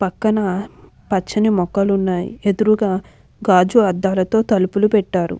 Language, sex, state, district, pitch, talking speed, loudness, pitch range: Telugu, female, Andhra Pradesh, Anantapur, 200 Hz, 100 wpm, -17 LUFS, 185-215 Hz